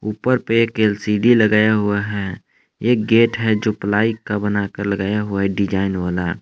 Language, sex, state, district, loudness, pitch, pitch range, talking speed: Hindi, male, Jharkhand, Palamu, -18 LUFS, 105 Hz, 100-110 Hz, 175 wpm